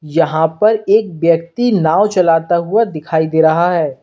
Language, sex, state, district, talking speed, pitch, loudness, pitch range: Hindi, male, Uttar Pradesh, Lalitpur, 165 wpm, 170 Hz, -13 LUFS, 160-205 Hz